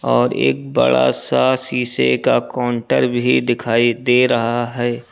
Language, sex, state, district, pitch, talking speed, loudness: Hindi, male, Uttar Pradesh, Lucknow, 120 Hz, 140 wpm, -17 LUFS